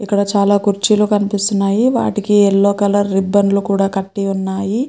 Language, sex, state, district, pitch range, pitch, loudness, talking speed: Telugu, female, Andhra Pradesh, Krishna, 195-205 Hz, 200 Hz, -15 LUFS, 145 wpm